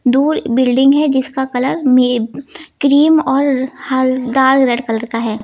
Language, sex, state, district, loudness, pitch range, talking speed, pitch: Hindi, female, Uttar Pradesh, Lucknow, -14 LUFS, 250-275 Hz, 155 wpm, 265 Hz